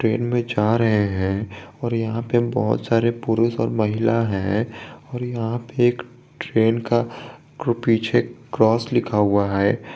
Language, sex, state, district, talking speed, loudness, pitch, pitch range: Hindi, male, Jharkhand, Garhwa, 150 wpm, -21 LUFS, 115 Hz, 105-120 Hz